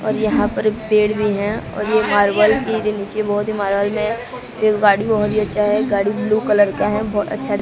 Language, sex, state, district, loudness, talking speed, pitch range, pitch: Hindi, female, Odisha, Sambalpur, -18 LUFS, 160 wpm, 205-215 Hz, 215 Hz